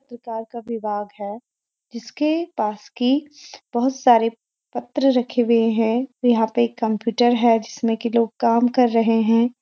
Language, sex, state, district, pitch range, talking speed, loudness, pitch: Hindi, female, Uttarakhand, Uttarkashi, 225-250 Hz, 145 wpm, -20 LUFS, 235 Hz